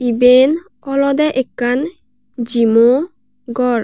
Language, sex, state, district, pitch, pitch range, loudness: Chakma, female, Tripura, West Tripura, 250 Hz, 240-275 Hz, -14 LUFS